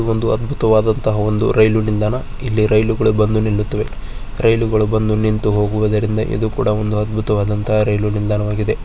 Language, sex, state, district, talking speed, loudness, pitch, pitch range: Kannada, male, Karnataka, Bijapur, 140 wpm, -17 LUFS, 110 Hz, 105-110 Hz